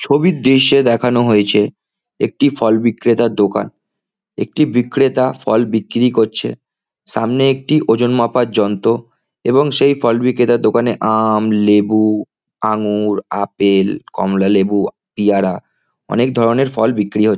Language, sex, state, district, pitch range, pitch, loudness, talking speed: Bengali, male, West Bengal, Kolkata, 105-125 Hz, 115 Hz, -15 LUFS, 115 wpm